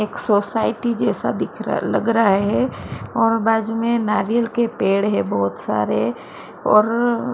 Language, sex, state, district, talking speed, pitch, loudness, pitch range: Hindi, female, Maharashtra, Mumbai Suburban, 165 wpm, 225 Hz, -19 LUFS, 205-235 Hz